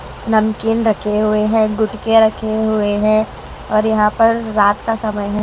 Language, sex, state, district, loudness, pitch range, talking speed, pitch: Hindi, female, Haryana, Rohtak, -16 LUFS, 210-220 Hz, 165 wpm, 215 Hz